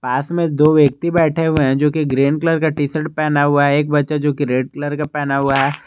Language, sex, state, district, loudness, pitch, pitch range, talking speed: Hindi, male, Jharkhand, Garhwa, -16 LUFS, 145 Hz, 140-155 Hz, 275 wpm